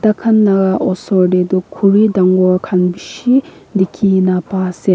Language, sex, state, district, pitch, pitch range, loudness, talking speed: Nagamese, female, Nagaland, Kohima, 190 Hz, 185-205 Hz, -13 LUFS, 170 wpm